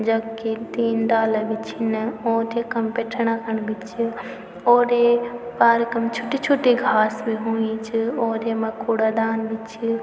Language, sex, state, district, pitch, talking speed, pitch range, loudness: Garhwali, female, Uttarakhand, Tehri Garhwal, 230 Hz, 160 wpm, 225-235 Hz, -22 LUFS